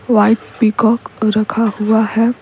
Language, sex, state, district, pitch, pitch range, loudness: Hindi, female, Bihar, Patna, 225 Hz, 215-230 Hz, -15 LUFS